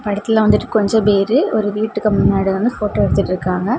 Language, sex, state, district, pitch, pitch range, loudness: Tamil, female, Tamil Nadu, Kanyakumari, 210 Hz, 200-220 Hz, -16 LUFS